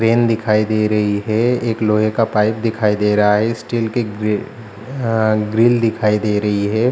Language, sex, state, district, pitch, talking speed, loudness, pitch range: Hindi, male, Bihar, Jahanabad, 110 Hz, 180 wpm, -17 LUFS, 105-115 Hz